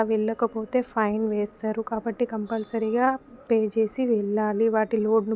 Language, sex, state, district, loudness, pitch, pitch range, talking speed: Telugu, female, Telangana, Karimnagar, -25 LUFS, 220 Hz, 220-230 Hz, 110 wpm